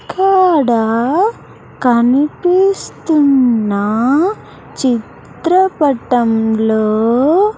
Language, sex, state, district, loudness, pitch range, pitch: Telugu, female, Andhra Pradesh, Sri Satya Sai, -13 LUFS, 230-355 Hz, 270 Hz